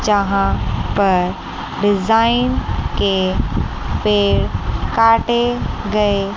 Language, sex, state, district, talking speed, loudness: Hindi, female, Chandigarh, Chandigarh, 75 wpm, -17 LUFS